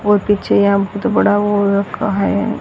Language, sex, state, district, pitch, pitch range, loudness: Hindi, female, Haryana, Rohtak, 205 Hz, 200-205 Hz, -15 LUFS